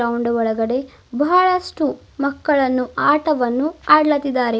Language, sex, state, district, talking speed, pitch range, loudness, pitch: Kannada, female, Karnataka, Bidar, 80 wpm, 245-300 Hz, -18 LUFS, 280 Hz